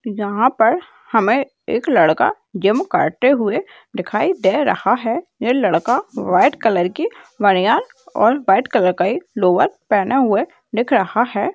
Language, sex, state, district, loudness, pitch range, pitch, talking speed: Hindi, female, Maharashtra, Dhule, -17 LUFS, 205-340 Hz, 245 Hz, 150 wpm